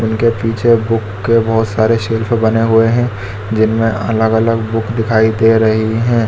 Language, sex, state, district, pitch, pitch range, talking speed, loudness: Hindi, male, Chhattisgarh, Bilaspur, 115 Hz, 110-115 Hz, 170 wpm, -13 LUFS